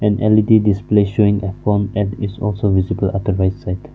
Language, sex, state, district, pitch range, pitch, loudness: English, male, Nagaland, Kohima, 95-105 Hz, 105 Hz, -17 LUFS